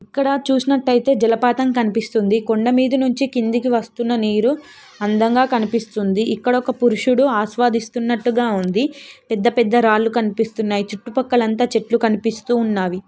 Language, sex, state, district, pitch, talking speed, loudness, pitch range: Telugu, female, Telangana, Nalgonda, 235 Hz, 120 wpm, -18 LUFS, 220-250 Hz